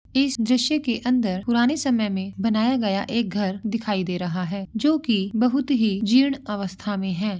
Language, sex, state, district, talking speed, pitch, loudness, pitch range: Hindi, female, Bihar, Jahanabad, 185 wpm, 220 Hz, -23 LUFS, 195-250 Hz